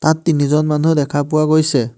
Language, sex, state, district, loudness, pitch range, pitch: Assamese, male, Assam, Hailakandi, -15 LUFS, 145-155 Hz, 155 Hz